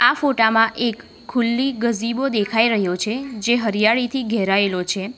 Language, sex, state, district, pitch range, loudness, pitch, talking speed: Gujarati, female, Gujarat, Valsad, 210-240 Hz, -19 LUFS, 230 Hz, 140 wpm